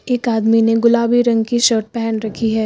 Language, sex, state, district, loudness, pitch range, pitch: Hindi, female, Uttar Pradesh, Lucknow, -15 LUFS, 225-235 Hz, 230 Hz